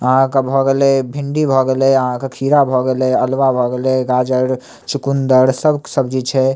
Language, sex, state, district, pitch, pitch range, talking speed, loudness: Maithili, male, Bihar, Samastipur, 130 Hz, 130-135 Hz, 185 wpm, -15 LUFS